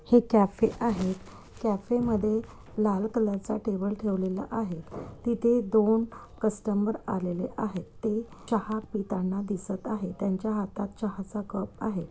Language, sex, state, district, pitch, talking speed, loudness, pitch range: Marathi, female, Maharashtra, Nagpur, 215 Hz, 125 wpm, -29 LUFS, 195-220 Hz